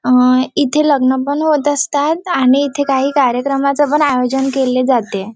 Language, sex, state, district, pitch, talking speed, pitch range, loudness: Marathi, female, Maharashtra, Chandrapur, 275 Hz, 155 wpm, 255-290 Hz, -14 LUFS